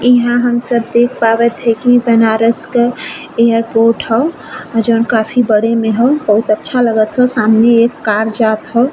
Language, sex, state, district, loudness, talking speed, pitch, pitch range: Bhojpuri, female, Uttar Pradesh, Ghazipur, -12 LUFS, 180 wpm, 230 Hz, 225-245 Hz